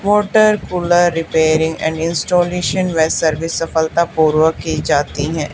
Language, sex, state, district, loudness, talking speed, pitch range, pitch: Hindi, female, Haryana, Charkhi Dadri, -15 LUFS, 120 wpm, 160-175 Hz, 165 Hz